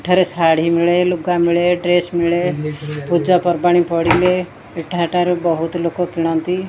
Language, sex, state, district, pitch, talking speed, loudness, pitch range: Odia, female, Odisha, Khordha, 175 Hz, 135 wpm, -16 LUFS, 170-180 Hz